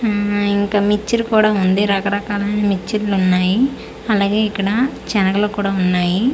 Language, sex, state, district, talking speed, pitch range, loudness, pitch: Telugu, female, Andhra Pradesh, Manyam, 130 wpm, 195-215 Hz, -17 LUFS, 205 Hz